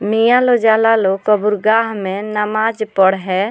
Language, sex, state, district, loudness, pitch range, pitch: Bhojpuri, female, Bihar, Muzaffarpur, -15 LUFS, 195-225 Hz, 215 Hz